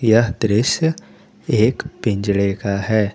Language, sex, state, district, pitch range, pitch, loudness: Hindi, male, Jharkhand, Garhwa, 100-115 Hz, 110 Hz, -18 LUFS